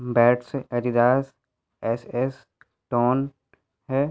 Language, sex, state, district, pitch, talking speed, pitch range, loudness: Hindi, male, Uttar Pradesh, Varanasi, 125 Hz, 75 wpm, 120-135 Hz, -24 LUFS